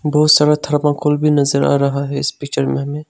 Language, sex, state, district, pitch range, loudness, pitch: Hindi, male, Arunachal Pradesh, Longding, 140-150 Hz, -15 LUFS, 145 Hz